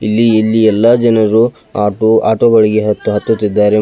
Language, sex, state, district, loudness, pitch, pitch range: Kannada, male, Karnataka, Belgaum, -11 LUFS, 110 Hz, 105-115 Hz